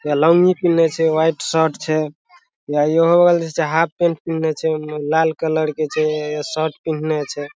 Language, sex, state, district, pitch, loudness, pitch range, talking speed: Maithili, male, Bihar, Madhepura, 160 Hz, -18 LUFS, 155-165 Hz, 180 wpm